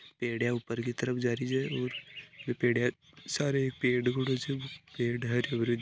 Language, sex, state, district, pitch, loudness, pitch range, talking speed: Marwari, male, Rajasthan, Nagaur, 125 Hz, -32 LUFS, 120-135 Hz, 135 wpm